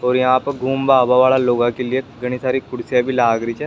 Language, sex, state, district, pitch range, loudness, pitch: Rajasthani, male, Rajasthan, Nagaur, 125-130 Hz, -17 LUFS, 130 Hz